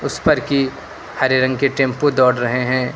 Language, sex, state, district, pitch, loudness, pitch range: Hindi, male, Uttar Pradesh, Lucknow, 130 Hz, -17 LUFS, 125-135 Hz